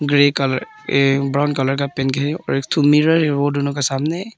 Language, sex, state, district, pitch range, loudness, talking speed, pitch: Hindi, female, Arunachal Pradesh, Papum Pare, 135-150 Hz, -18 LUFS, 235 wpm, 145 Hz